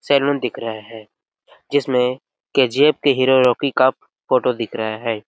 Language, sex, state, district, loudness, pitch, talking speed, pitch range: Hindi, male, Chhattisgarh, Sarguja, -18 LUFS, 130 Hz, 170 wpm, 115-140 Hz